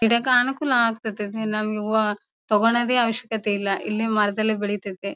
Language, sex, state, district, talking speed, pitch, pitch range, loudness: Kannada, female, Karnataka, Bellary, 130 wpm, 220 Hz, 210-230 Hz, -22 LUFS